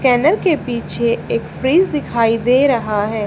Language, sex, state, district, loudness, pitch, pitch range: Hindi, female, Haryana, Charkhi Dadri, -16 LUFS, 245 Hz, 230-285 Hz